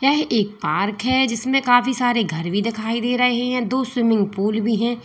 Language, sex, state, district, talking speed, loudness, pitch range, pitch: Hindi, female, Uttar Pradesh, Lalitpur, 215 wpm, -20 LUFS, 215-250 Hz, 235 Hz